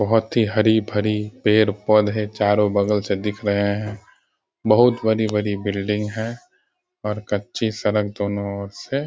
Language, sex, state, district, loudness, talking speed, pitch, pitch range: Hindi, male, Bihar, Sitamarhi, -21 LUFS, 140 wpm, 105 Hz, 100-110 Hz